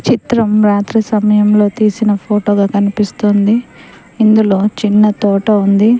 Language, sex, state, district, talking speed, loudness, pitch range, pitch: Telugu, female, Telangana, Mahabubabad, 110 wpm, -12 LUFS, 205-215 Hz, 210 Hz